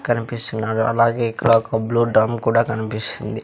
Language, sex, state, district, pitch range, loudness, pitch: Telugu, male, Andhra Pradesh, Sri Satya Sai, 110-115 Hz, -19 LUFS, 115 Hz